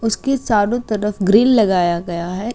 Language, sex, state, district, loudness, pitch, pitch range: Hindi, female, Uttar Pradesh, Gorakhpur, -16 LUFS, 210 Hz, 185-230 Hz